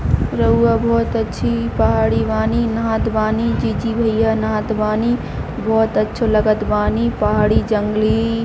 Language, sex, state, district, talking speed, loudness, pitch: Hindi, female, Chhattisgarh, Bilaspur, 120 wpm, -17 LUFS, 215 Hz